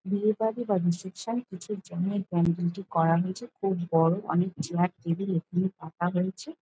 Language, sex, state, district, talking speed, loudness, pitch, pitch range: Bengali, female, West Bengal, Jalpaiguri, 125 wpm, -29 LUFS, 185 Hz, 175-200 Hz